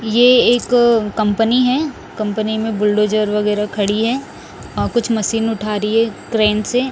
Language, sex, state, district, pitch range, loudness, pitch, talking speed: Hindi, male, Odisha, Nuapada, 210-240 Hz, -16 LUFS, 220 Hz, 165 wpm